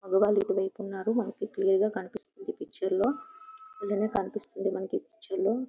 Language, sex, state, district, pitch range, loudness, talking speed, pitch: Telugu, female, Andhra Pradesh, Visakhapatnam, 195-270 Hz, -30 LUFS, 160 wpm, 210 Hz